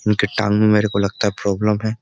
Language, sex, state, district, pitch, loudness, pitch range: Hindi, male, Uttar Pradesh, Jyotiba Phule Nagar, 105 Hz, -18 LUFS, 100-105 Hz